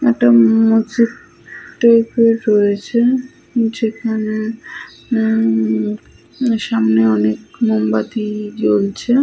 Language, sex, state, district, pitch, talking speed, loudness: Bengali, female, West Bengal, Paschim Medinipur, 220 Hz, 80 wpm, -16 LUFS